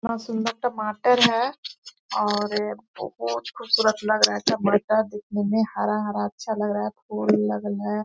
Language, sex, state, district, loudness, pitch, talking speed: Hindi, female, Chhattisgarh, Korba, -24 LUFS, 210 Hz, 150 wpm